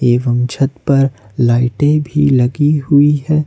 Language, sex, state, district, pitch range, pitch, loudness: Hindi, male, Jharkhand, Ranchi, 125-145 Hz, 140 Hz, -13 LUFS